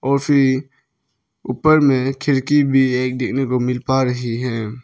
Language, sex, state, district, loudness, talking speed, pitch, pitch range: Hindi, male, Arunachal Pradesh, Lower Dibang Valley, -17 LUFS, 160 wpm, 130 Hz, 125-140 Hz